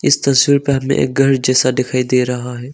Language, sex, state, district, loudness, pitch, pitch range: Hindi, male, Arunachal Pradesh, Longding, -14 LUFS, 130 Hz, 125-135 Hz